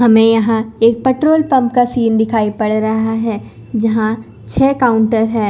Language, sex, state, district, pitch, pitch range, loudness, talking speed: Hindi, female, Punjab, Kapurthala, 225 Hz, 220-240 Hz, -14 LUFS, 165 wpm